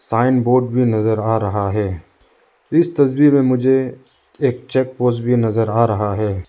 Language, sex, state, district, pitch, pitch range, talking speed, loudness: Hindi, male, Arunachal Pradesh, Lower Dibang Valley, 120 Hz, 110-130 Hz, 175 wpm, -17 LUFS